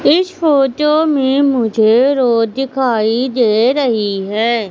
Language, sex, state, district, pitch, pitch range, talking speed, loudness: Hindi, female, Madhya Pradesh, Katni, 255 Hz, 225-280 Hz, 115 wpm, -13 LUFS